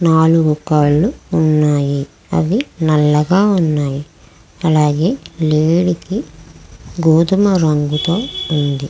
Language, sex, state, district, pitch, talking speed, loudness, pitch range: Telugu, female, Andhra Pradesh, Krishna, 160 Hz, 90 wpm, -15 LUFS, 150-175 Hz